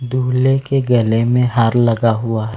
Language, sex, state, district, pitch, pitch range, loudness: Hindi, male, Bihar, Patna, 120 Hz, 115-125 Hz, -15 LUFS